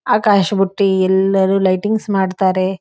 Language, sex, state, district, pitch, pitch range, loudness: Kannada, female, Karnataka, Dharwad, 195 Hz, 190-200 Hz, -15 LUFS